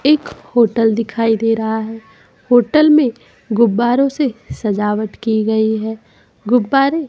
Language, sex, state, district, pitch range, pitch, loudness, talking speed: Hindi, female, Madhya Pradesh, Umaria, 220-260 Hz, 230 Hz, -15 LUFS, 125 wpm